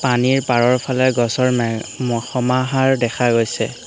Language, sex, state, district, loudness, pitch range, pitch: Assamese, male, Assam, Hailakandi, -17 LUFS, 120-130 Hz, 125 Hz